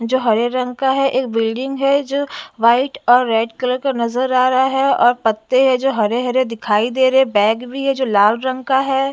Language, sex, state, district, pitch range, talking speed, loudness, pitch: Hindi, female, Bihar, West Champaran, 230-265 Hz, 225 wpm, -16 LUFS, 255 Hz